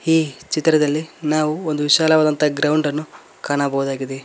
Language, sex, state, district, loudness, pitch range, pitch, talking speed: Kannada, male, Karnataka, Koppal, -19 LUFS, 145-155 Hz, 150 Hz, 115 wpm